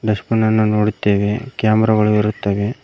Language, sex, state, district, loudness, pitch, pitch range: Kannada, male, Karnataka, Koppal, -17 LUFS, 105 Hz, 105-110 Hz